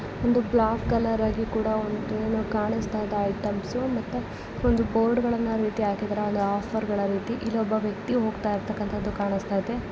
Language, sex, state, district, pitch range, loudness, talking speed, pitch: Kannada, female, Karnataka, Dharwad, 205-225 Hz, -26 LUFS, 145 wpm, 215 Hz